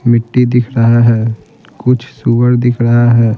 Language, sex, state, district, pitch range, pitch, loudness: Hindi, male, Bihar, Patna, 115-125 Hz, 120 Hz, -11 LUFS